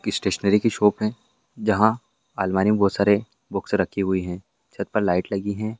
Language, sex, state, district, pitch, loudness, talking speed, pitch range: Hindi, male, Bihar, Begusarai, 100 Hz, -22 LUFS, 195 wpm, 95-110 Hz